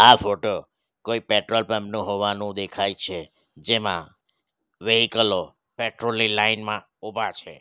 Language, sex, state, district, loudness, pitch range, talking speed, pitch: Gujarati, male, Gujarat, Valsad, -23 LUFS, 100-115 Hz, 135 wpm, 105 Hz